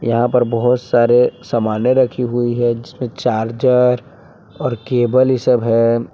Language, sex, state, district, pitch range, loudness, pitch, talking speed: Hindi, male, Jharkhand, Palamu, 120-125 Hz, -16 LUFS, 120 Hz, 145 wpm